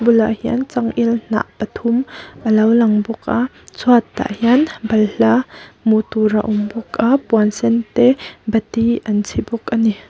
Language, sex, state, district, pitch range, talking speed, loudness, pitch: Mizo, female, Mizoram, Aizawl, 215-240 Hz, 170 wpm, -17 LUFS, 230 Hz